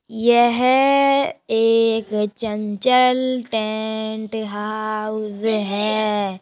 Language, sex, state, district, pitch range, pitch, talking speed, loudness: Hindi, male, Uttar Pradesh, Jalaun, 215-240 Hz, 220 Hz, 55 wpm, -19 LUFS